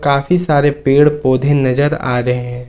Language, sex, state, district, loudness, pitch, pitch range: Hindi, male, Jharkhand, Ranchi, -14 LUFS, 140 Hz, 125-145 Hz